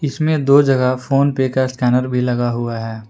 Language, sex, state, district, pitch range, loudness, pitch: Hindi, male, Jharkhand, Palamu, 125-140 Hz, -16 LUFS, 130 Hz